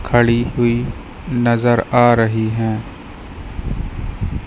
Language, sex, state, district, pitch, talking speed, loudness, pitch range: Hindi, female, Madhya Pradesh, Katni, 110 Hz, 80 wpm, -17 LUFS, 95-120 Hz